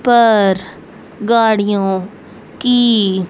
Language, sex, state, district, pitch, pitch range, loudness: Hindi, female, Haryana, Rohtak, 210 Hz, 195-235 Hz, -13 LUFS